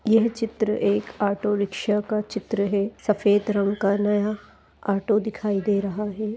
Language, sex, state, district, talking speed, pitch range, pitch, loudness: Hindi, female, Chhattisgarh, Sarguja, 170 wpm, 200-215 Hz, 210 Hz, -24 LUFS